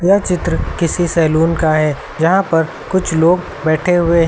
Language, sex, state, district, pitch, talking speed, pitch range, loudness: Hindi, male, Uttar Pradesh, Lucknow, 165 Hz, 180 wpm, 160-180 Hz, -15 LUFS